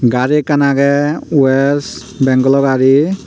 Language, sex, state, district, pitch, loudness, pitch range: Chakma, male, Tripura, Unakoti, 140 Hz, -12 LUFS, 135-145 Hz